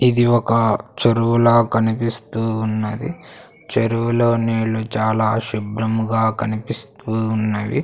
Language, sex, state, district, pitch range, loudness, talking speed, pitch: Telugu, male, Andhra Pradesh, Sri Satya Sai, 110-115 Hz, -19 LUFS, 85 wpm, 115 Hz